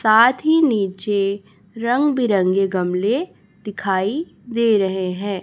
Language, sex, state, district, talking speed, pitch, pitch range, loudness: Hindi, female, Chhattisgarh, Raipur, 100 wpm, 205 Hz, 195-235 Hz, -19 LUFS